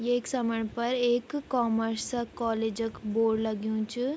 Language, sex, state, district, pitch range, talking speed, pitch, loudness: Garhwali, female, Uttarakhand, Tehri Garhwal, 220-245 Hz, 145 wpm, 230 Hz, -29 LUFS